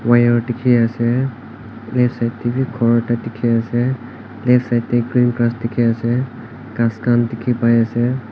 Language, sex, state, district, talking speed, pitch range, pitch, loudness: Nagamese, male, Nagaland, Kohima, 160 wpm, 115-120 Hz, 120 Hz, -17 LUFS